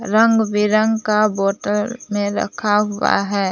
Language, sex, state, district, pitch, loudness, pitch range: Hindi, female, Jharkhand, Palamu, 210 Hz, -18 LUFS, 205-215 Hz